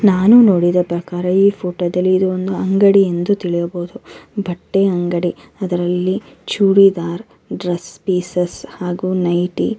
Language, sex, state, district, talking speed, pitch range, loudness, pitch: Kannada, female, Karnataka, Bellary, 105 wpm, 175-195 Hz, -16 LUFS, 180 Hz